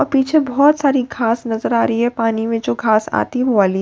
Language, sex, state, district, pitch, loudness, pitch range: Hindi, female, Bihar, Katihar, 235 Hz, -16 LUFS, 225-270 Hz